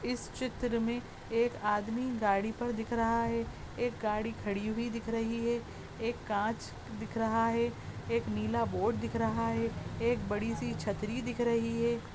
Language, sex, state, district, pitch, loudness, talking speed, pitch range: Hindi, female, Goa, North and South Goa, 230 Hz, -34 LUFS, 180 wpm, 205-235 Hz